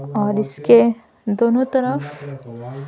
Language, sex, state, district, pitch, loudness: Hindi, female, Bihar, Patna, 205 Hz, -18 LUFS